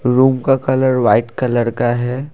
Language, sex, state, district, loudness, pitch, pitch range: Hindi, male, Assam, Kamrup Metropolitan, -15 LUFS, 125 Hz, 120-130 Hz